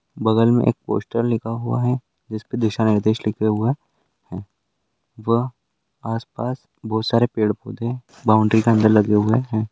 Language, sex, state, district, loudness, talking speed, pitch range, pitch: Hindi, male, Rajasthan, Churu, -20 LUFS, 165 wpm, 110-120 Hz, 115 Hz